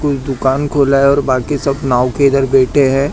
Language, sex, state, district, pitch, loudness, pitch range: Hindi, male, Maharashtra, Mumbai Suburban, 135 Hz, -13 LUFS, 135-140 Hz